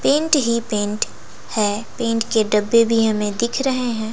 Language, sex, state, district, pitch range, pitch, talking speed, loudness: Hindi, female, Bihar, West Champaran, 215-235 Hz, 230 Hz, 175 wpm, -19 LUFS